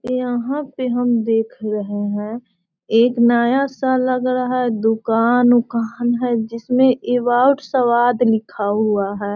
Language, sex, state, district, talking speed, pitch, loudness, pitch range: Hindi, female, Bihar, Sitamarhi, 120 wpm, 240 Hz, -18 LUFS, 225-250 Hz